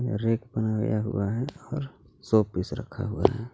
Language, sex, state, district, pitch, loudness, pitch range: Hindi, male, Jharkhand, Garhwa, 115 Hz, -28 LUFS, 110-125 Hz